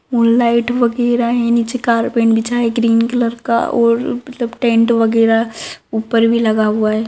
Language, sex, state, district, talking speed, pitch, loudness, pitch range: Magahi, female, Bihar, Gaya, 170 wpm, 235 Hz, -15 LUFS, 230-240 Hz